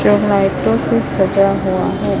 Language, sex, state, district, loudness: Hindi, female, Chhattisgarh, Raipur, -15 LUFS